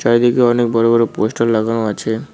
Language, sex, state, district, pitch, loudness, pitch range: Bengali, male, West Bengal, Cooch Behar, 115 Hz, -15 LUFS, 110-120 Hz